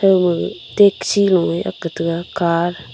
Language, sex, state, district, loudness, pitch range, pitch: Wancho, female, Arunachal Pradesh, Longding, -17 LUFS, 170-190 Hz, 175 Hz